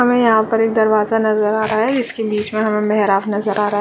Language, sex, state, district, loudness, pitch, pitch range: Hindi, female, Uttarakhand, Uttarkashi, -16 LUFS, 215 Hz, 210-225 Hz